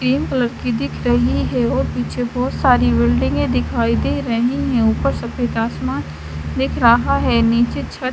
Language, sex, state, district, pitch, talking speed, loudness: Hindi, female, Haryana, Charkhi Dadri, 225 Hz, 175 wpm, -18 LUFS